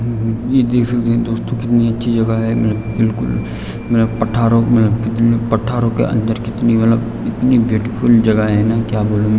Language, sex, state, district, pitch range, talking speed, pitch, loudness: Hindi, male, Uttarakhand, Tehri Garhwal, 110-115 Hz, 165 wpm, 115 Hz, -15 LUFS